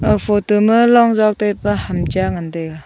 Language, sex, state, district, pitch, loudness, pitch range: Wancho, female, Arunachal Pradesh, Longding, 205 Hz, -15 LUFS, 175-215 Hz